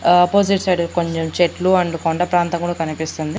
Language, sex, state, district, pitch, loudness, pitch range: Telugu, female, Andhra Pradesh, Annamaya, 175 Hz, -18 LUFS, 165-180 Hz